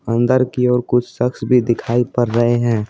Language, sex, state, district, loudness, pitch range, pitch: Hindi, male, Bihar, Patna, -17 LUFS, 120-125 Hz, 120 Hz